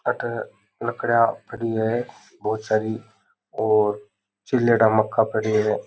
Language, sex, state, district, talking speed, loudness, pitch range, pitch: Rajasthani, male, Rajasthan, Nagaur, 110 wpm, -22 LUFS, 110-115 Hz, 110 Hz